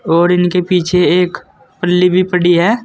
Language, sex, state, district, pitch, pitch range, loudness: Hindi, male, Uttar Pradesh, Saharanpur, 180 Hz, 175-180 Hz, -12 LUFS